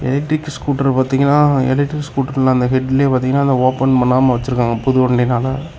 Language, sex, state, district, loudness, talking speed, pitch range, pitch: Tamil, male, Tamil Nadu, Namakkal, -15 LUFS, 145 wpm, 130-140 Hz, 130 Hz